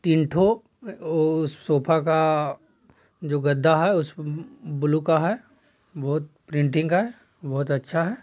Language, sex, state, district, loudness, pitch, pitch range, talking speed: Hindi, male, Bihar, Jahanabad, -23 LUFS, 160 Hz, 150-170 Hz, 125 wpm